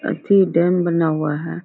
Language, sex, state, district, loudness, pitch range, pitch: Hindi, female, Bihar, Muzaffarpur, -18 LUFS, 160-180 Hz, 170 Hz